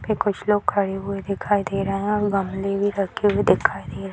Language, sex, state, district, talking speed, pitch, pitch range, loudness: Hindi, female, Bihar, Purnia, 245 wpm, 200 Hz, 195-205 Hz, -22 LUFS